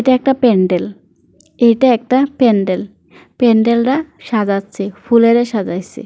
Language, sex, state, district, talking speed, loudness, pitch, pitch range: Bengali, female, West Bengal, Kolkata, 110 wpm, -14 LUFS, 235 Hz, 200-255 Hz